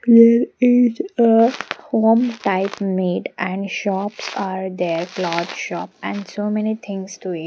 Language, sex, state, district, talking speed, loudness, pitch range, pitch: English, female, Haryana, Jhajjar, 150 wpm, -19 LUFS, 190-230 Hz, 200 Hz